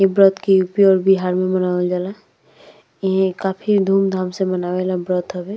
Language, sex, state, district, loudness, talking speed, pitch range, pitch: Bhojpuri, female, Uttar Pradesh, Deoria, -18 LUFS, 195 wpm, 180-195 Hz, 190 Hz